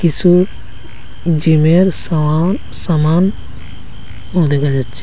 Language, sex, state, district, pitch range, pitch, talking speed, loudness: Bengali, male, Assam, Hailakandi, 140-175 Hz, 160 Hz, 85 wpm, -14 LUFS